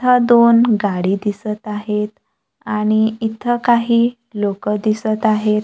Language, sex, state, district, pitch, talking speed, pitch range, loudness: Marathi, female, Maharashtra, Gondia, 215 Hz, 115 wpm, 210-235 Hz, -17 LUFS